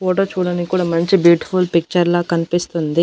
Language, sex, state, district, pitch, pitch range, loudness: Telugu, female, Andhra Pradesh, Annamaya, 175 Hz, 170-180 Hz, -16 LUFS